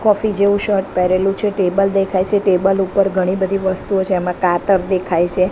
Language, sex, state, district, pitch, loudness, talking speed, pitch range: Gujarati, female, Gujarat, Gandhinagar, 190 Hz, -16 LUFS, 195 wpm, 185-195 Hz